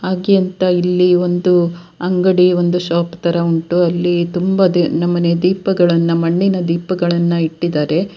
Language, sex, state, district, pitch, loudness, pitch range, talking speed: Kannada, female, Karnataka, Dakshina Kannada, 175 Hz, -15 LUFS, 170-180 Hz, 120 wpm